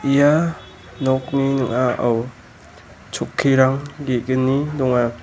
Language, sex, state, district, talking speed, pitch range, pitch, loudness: Garo, male, Meghalaya, West Garo Hills, 70 wpm, 120-135 Hz, 130 Hz, -19 LUFS